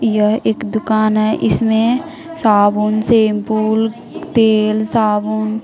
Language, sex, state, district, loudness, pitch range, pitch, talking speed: Hindi, female, Bihar, West Champaran, -15 LUFS, 215-225 Hz, 220 Hz, 95 wpm